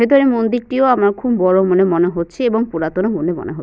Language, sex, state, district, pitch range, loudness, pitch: Bengali, female, West Bengal, Purulia, 185-245 Hz, -16 LUFS, 215 Hz